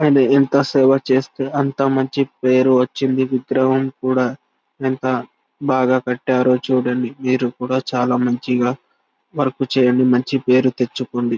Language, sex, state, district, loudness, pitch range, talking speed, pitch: Telugu, male, Telangana, Karimnagar, -18 LUFS, 125-135 Hz, 125 wpm, 130 Hz